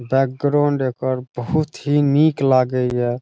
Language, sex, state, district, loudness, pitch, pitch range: Maithili, male, Bihar, Saharsa, -19 LUFS, 135 Hz, 125-145 Hz